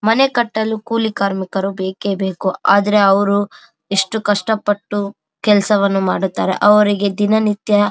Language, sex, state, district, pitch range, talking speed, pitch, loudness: Kannada, female, Karnataka, Bellary, 195-210 Hz, 115 wpm, 205 Hz, -16 LUFS